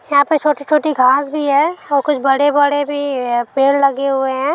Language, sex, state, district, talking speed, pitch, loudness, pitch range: Hindi, female, Bihar, Jamui, 210 wpm, 285 Hz, -15 LUFS, 270-295 Hz